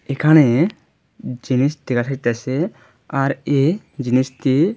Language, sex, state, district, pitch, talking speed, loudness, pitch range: Bengali, male, Tripura, Dhalai, 135 Hz, 100 wpm, -18 LUFS, 130-155 Hz